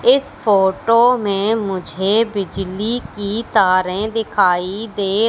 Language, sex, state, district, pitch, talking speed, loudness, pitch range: Hindi, female, Madhya Pradesh, Katni, 205 Hz, 100 wpm, -17 LUFS, 190-225 Hz